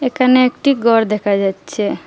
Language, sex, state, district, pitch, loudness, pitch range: Bengali, female, Assam, Hailakandi, 230 Hz, -15 LUFS, 205-255 Hz